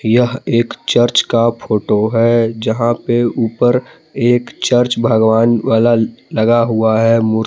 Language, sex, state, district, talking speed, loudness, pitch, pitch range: Hindi, male, Jharkhand, Palamu, 135 wpm, -14 LUFS, 115 Hz, 110-120 Hz